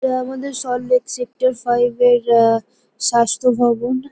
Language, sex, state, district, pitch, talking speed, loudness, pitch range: Bengali, female, West Bengal, North 24 Parganas, 245 Hz, 130 wpm, -17 LUFS, 240-255 Hz